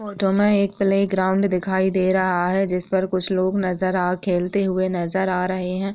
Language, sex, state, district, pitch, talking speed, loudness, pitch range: Hindi, female, Bihar, Purnia, 185 Hz, 210 wpm, -21 LUFS, 185-195 Hz